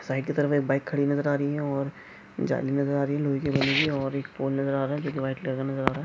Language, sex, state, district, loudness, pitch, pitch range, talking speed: Hindi, male, Chhattisgarh, Jashpur, -27 LUFS, 140 Hz, 135-145 Hz, 345 wpm